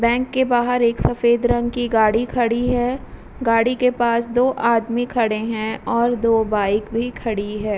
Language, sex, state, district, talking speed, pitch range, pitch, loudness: Hindi, female, Bihar, Vaishali, 175 wpm, 225-245 Hz, 235 Hz, -19 LUFS